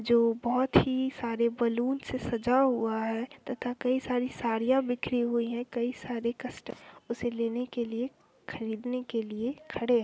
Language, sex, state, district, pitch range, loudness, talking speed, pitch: Hindi, female, Uttar Pradesh, Hamirpur, 235-250 Hz, -30 LUFS, 175 wpm, 240 Hz